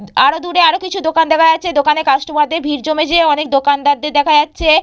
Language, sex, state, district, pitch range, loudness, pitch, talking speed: Bengali, female, West Bengal, Purulia, 290-325 Hz, -13 LUFS, 305 Hz, 225 wpm